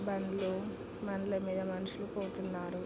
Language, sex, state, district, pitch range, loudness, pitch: Telugu, female, Andhra Pradesh, Krishna, 185-200 Hz, -38 LUFS, 195 Hz